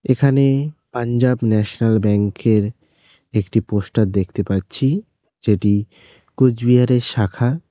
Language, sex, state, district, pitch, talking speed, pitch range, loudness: Bengali, male, West Bengal, Cooch Behar, 115 Hz, 85 wpm, 105-130 Hz, -18 LUFS